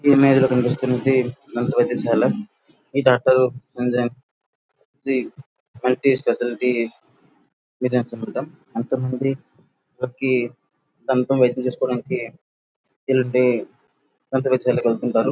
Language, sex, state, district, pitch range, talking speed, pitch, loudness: Telugu, male, Andhra Pradesh, Srikakulam, 125-130 Hz, 80 wpm, 125 Hz, -21 LUFS